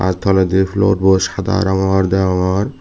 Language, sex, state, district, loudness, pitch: Chakma, male, Tripura, Dhalai, -15 LUFS, 95 Hz